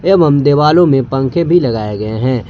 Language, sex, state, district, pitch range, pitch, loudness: Hindi, male, Jharkhand, Palamu, 125-170 Hz, 140 Hz, -12 LUFS